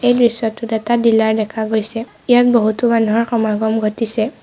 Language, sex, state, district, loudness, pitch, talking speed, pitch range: Assamese, female, Assam, Sonitpur, -16 LUFS, 225 Hz, 150 wpm, 220-235 Hz